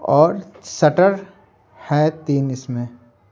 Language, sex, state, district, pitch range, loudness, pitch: Hindi, male, Bihar, Patna, 120-160 Hz, -18 LUFS, 145 Hz